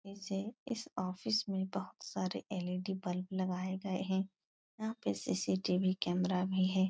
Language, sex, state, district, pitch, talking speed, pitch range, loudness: Hindi, female, Uttar Pradesh, Etah, 185 Hz, 165 wpm, 185-195 Hz, -37 LUFS